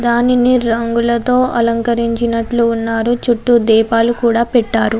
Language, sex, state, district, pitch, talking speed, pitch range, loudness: Telugu, female, Andhra Pradesh, Anantapur, 235 Hz, 95 wpm, 230-240 Hz, -14 LUFS